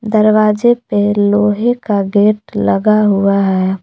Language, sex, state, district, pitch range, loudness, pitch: Hindi, female, Jharkhand, Palamu, 200-215 Hz, -13 LUFS, 210 Hz